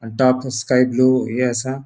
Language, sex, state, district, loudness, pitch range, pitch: Konkani, male, Goa, North and South Goa, -18 LUFS, 125-130 Hz, 130 Hz